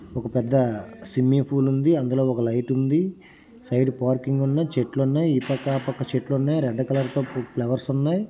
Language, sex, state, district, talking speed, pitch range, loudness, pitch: Telugu, male, Andhra Pradesh, Srikakulam, 165 wpm, 130-140 Hz, -23 LUFS, 135 Hz